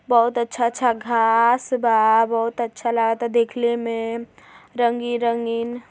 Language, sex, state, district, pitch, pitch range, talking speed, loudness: Hindi, female, Uttar Pradesh, Deoria, 235 Hz, 230-240 Hz, 110 wpm, -20 LUFS